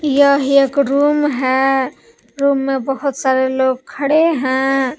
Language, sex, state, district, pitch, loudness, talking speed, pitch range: Hindi, female, Jharkhand, Palamu, 270 Hz, -15 LUFS, 130 wpm, 265-280 Hz